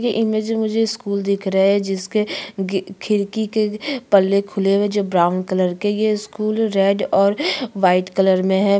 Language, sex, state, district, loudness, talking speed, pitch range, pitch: Hindi, female, Chhattisgarh, Sukma, -19 LUFS, 185 wpm, 195-215 Hz, 200 Hz